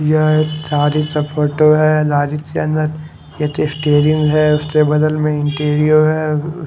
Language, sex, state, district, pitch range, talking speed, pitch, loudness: Hindi, male, Haryana, Charkhi Dadri, 150-155 Hz, 170 wpm, 150 Hz, -15 LUFS